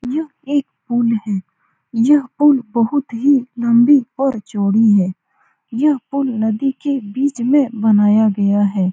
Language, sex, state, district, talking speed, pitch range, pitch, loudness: Hindi, female, Bihar, Saran, 160 wpm, 215-280 Hz, 240 Hz, -16 LUFS